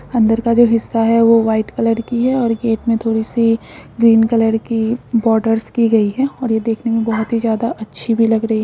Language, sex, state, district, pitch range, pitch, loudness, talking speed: Hindi, female, Bihar, Supaul, 225-230 Hz, 230 Hz, -15 LUFS, 220 wpm